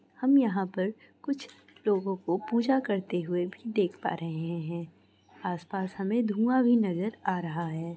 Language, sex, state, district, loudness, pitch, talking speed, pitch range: Hindi, female, Bihar, Purnia, -30 LUFS, 195 Hz, 165 wpm, 175-225 Hz